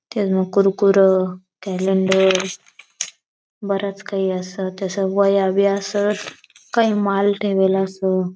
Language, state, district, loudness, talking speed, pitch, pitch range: Bhili, Maharashtra, Dhule, -19 LUFS, 115 wpm, 195 Hz, 190-200 Hz